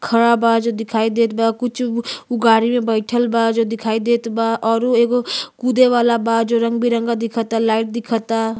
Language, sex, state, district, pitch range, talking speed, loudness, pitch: Bhojpuri, female, Uttar Pradesh, Ghazipur, 225-235 Hz, 190 wpm, -17 LUFS, 230 Hz